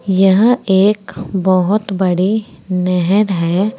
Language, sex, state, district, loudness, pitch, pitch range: Hindi, female, Uttar Pradesh, Saharanpur, -14 LUFS, 190 Hz, 185-205 Hz